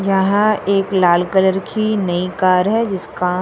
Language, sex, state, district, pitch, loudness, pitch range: Hindi, female, Uttar Pradesh, Jyotiba Phule Nagar, 190 Hz, -16 LUFS, 180-200 Hz